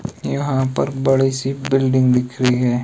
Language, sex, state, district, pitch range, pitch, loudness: Hindi, male, Himachal Pradesh, Shimla, 125-135 Hz, 130 Hz, -18 LUFS